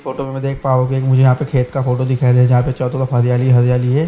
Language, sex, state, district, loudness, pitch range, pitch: Hindi, male, Haryana, Charkhi Dadri, -15 LUFS, 125-135 Hz, 130 Hz